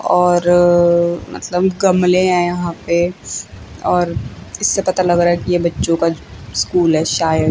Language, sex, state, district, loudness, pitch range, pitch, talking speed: Hindi, female, Chandigarh, Chandigarh, -15 LUFS, 120-175 Hz, 170 Hz, 160 wpm